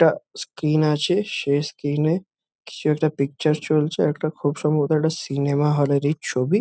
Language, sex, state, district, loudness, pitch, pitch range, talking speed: Bengali, male, West Bengal, Kolkata, -22 LUFS, 150 Hz, 145-160 Hz, 145 wpm